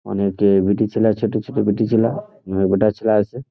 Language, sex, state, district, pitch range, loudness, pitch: Bengali, male, West Bengal, Jhargram, 100-115 Hz, -18 LUFS, 110 Hz